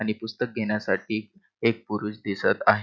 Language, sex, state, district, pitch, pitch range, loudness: Marathi, male, Maharashtra, Pune, 110 Hz, 105-115 Hz, -27 LUFS